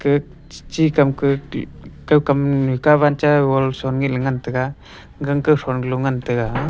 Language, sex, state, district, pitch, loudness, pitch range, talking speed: Wancho, male, Arunachal Pradesh, Longding, 140 Hz, -18 LUFS, 130-145 Hz, 170 wpm